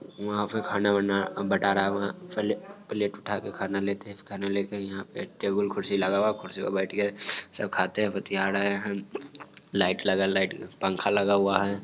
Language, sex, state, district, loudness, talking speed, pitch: Hindi, male, Bihar, Sitamarhi, -27 LUFS, 185 wpm, 100 Hz